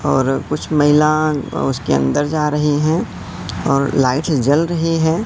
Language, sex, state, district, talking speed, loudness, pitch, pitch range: Hindi, male, Madhya Pradesh, Katni, 160 wpm, -16 LUFS, 145 Hz, 125-155 Hz